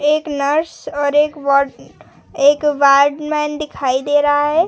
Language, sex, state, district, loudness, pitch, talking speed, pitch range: Hindi, female, Bihar, Gopalganj, -16 LUFS, 290 Hz, 140 wpm, 280-300 Hz